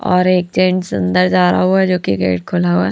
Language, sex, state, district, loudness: Hindi, female, Haryana, Rohtak, -14 LUFS